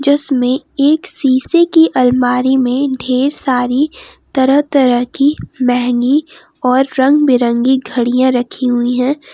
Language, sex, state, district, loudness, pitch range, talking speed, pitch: Hindi, female, Jharkhand, Palamu, -13 LUFS, 250-285 Hz, 120 wpm, 260 Hz